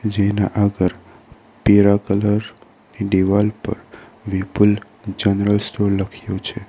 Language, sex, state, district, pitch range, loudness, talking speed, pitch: Gujarati, male, Gujarat, Valsad, 100-110 Hz, -19 LUFS, 110 wpm, 105 Hz